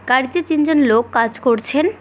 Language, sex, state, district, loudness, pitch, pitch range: Bengali, female, West Bengal, Cooch Behar, -16 LUFS, 260 Hz, 235-310 Hz